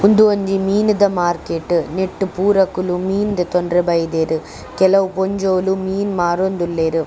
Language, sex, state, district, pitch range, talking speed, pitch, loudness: Tulu, female, Karnataka, Dakshina Kannada, 175-195 Hz, 110 wpm, 185 Hz, -17 LUFS